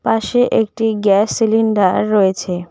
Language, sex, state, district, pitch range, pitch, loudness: Bengali, female, West Bengal, Cooch Behar, 195-225 Hz, 210 Hz, -15 LUFS